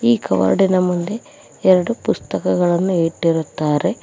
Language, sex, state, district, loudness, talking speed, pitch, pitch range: Kannada, female, Karnataka, Koppal, -18 LUFS, 105 wpm, 170 Hz, 120-185 Hz